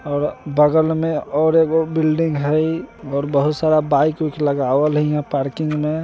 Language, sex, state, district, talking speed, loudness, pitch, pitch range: Bajjika, male, Bihar, Vaishali, 180 wpm, -18 LUFS, 150 Hz, 145-160 Hz